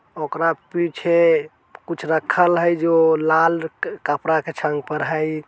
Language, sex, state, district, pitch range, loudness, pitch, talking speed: Bajjika, male, Bihar, Vaishali, 155-170 Hz, -19 LUFS, 160 Hz, 120 wpm